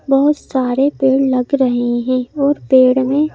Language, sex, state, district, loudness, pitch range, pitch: Hindi, female, Madhya Pradesh, Bhopal, -15 LUFS, 255-280 Hz, 265 Hz